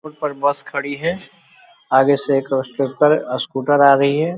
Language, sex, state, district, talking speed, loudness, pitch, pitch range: Hindi, male, Bihar, Muzaffarpur, 180 wpm, -17 LUFS, 140 Hz, 140-155 Hz